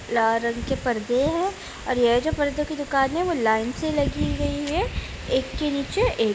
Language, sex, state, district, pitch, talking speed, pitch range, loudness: Hindi, female, Bihar, Jamui, 275 Hz, 220 wpm, 235-305 Hz, -24 LUFS